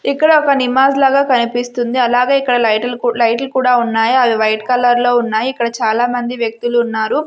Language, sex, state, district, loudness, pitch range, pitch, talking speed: Telugu, female, Andhra Pradesh, Sri Satya Sai, -14 LUFS, 235-260 Hz, 245 Hz, 190 wpm